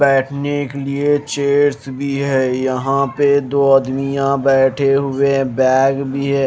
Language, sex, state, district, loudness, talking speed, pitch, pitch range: Hindi, male, Himachal Pradesh, Shimla, -16 LUFS, 150 wpm, 140 Hz, 135-140 Hz